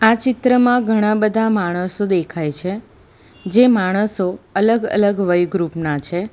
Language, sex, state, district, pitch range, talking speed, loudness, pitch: Gujarati, female, Gujarat, Valsad, 180-220 Hz, 140 wpm, -17 LUFS, 205 Hz